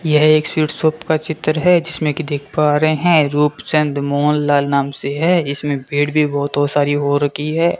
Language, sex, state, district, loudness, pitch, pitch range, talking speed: Hindi, male, Rajasthan, Bikaner, -16 LUFS, 150 Hz, 145-155 Hz, 225 wpm